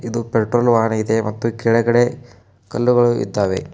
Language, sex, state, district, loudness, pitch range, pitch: Kannada, male, Karnataka, Koppal, -17 LUFS, 110-120 Hz, 115 Hz